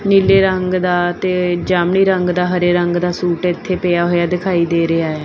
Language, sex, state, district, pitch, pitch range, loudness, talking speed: Punjabi, female, Punjab, Fazilka, 180 Hz, 175-185 Hz, -15 LUFS, 205 wpm